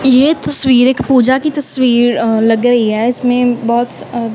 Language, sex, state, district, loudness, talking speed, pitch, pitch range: Hindi, female, Punjab, Kapurthala, -12 LUFS, 165 wpm, 245 Hz, 235-260 Hz